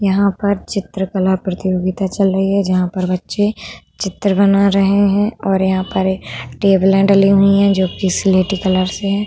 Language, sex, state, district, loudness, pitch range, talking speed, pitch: Hindi, female, Uttar Pradesh, Budaun, -15 LUFS, 190-200 Hz, 175 wpm, 195 Hz